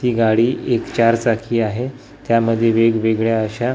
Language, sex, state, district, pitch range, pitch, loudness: Marathi, male, Maharashtra, Gondia, 115-120 Hz, 115 Hz, -17 LUFS